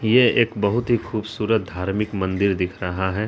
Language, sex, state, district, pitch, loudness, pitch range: Hindi, female, Bihar, Araria, 105 Hz, -21 LUFS, 95-115 Hz